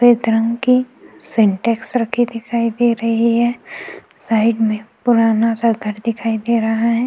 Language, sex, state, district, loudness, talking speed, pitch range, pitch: Hindi, female, Uttarakhand, Tehri Garhwal, -17 LUFS, 155 wpm, 225-240 Hz, 230 Hz